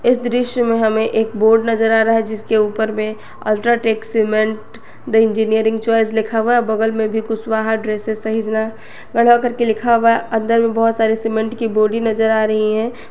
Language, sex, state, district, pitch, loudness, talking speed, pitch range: Hindi, female, Jharkhand, Garhwa, 225 Hz, -16 LUFS, 185 wpm, 220-230 Hz